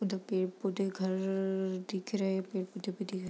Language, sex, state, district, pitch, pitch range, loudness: Hindi, female, Bihar, East Champaran, 190 Hz, 190-195 Hz, -35 LUFS